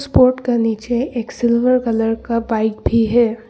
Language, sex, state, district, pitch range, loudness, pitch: Hindi, female, Arunachal Pradesh, Longding, 225-245 Hz, -17 LUFS, 235 Hz